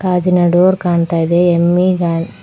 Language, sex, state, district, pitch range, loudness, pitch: Kannada, female, Karnataka, Koppal, 170-180 Hz, -13 LUFS, 175 Hz